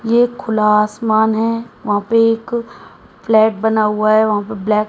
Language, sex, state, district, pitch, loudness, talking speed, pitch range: Hindi, female, Haryana, Jhajjar, 220 Hz, -15 LUFS, 185 wpm, 215-230 Hz